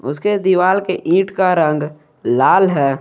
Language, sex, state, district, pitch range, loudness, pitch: Hindi, male, Jharkhand, Garhwa, 150-190 Hz, -15 LUFS, 180 Hz